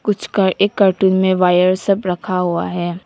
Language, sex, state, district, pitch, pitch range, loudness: Hindi, female, Nagaland, Kohima, 185 Hz, 180-195 Hz, -16 LUFS